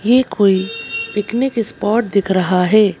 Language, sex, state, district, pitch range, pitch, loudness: Hindi, female, Madhya Pradesh, Bhopal, 195-230 Hz, 210 Hz, -16 LUFS